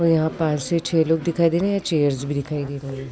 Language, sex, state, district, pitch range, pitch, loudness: Hindi, female, Uttar Pradesh, Varanasi, 145-165 Hz, 160 Hz, -22 LUFS